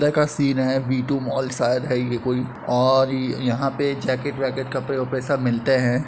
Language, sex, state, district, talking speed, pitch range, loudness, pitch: Hindi, male, Uttar Pradesh, Etah, 200 wpm, 125-135 Hz, -22 LUFS, 130 Hz